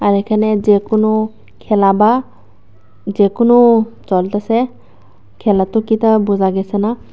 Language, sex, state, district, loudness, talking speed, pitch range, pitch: Bengali, female, Tripura, West Tripura, -14 LUFS, 120 wpm, 190-220 Hz, 205 Hz